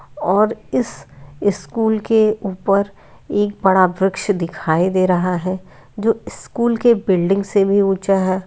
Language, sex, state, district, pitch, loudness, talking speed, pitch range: Hindi, female, Bihar, Lakhisarai, 195 Hz, -18 LUFS, 140 wpm, 185-210 Hz